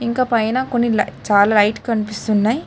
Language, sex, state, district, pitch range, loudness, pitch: Telugu, female, Telangana, Hyderabad, 210-240 Hz, -17 LUFS, 225 Hz